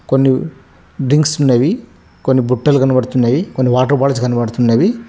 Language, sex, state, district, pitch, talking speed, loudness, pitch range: Telugu, male, Telangana, Hyderabad, 130 Hz, 120 wpm, -14 LUFS, 125-140 Hz